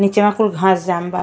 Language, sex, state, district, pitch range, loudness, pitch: Bhojpuri, female, Uttar Pradesh, Ghazipur, 180-205 Hz, -16 LUFS, 190 Hz